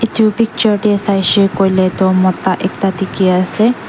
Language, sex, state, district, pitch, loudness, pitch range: Nagamese, female, Nagaland, Dimapur, 195 Hz, -13 LUFS, 185-215 Hz